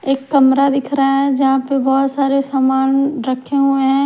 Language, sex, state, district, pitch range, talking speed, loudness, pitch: Hindi, female, Haryana, Charkhi Dadri, 270-275 Hz, 190 wpm, -15 LUFS, 270 Hz